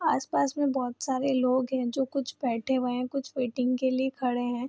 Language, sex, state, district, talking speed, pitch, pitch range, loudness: Hindi, female, Bihar, Gopalganj, 220 wpm, 255 Hz, 250-265 Hz, -28 LUFS